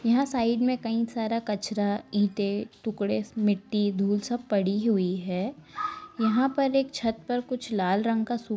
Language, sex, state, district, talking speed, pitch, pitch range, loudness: Hindi, female, Chhattisgarh, Balrampur, 170 wpm, 225 Hz, 205-245 Hz, -27 LUFS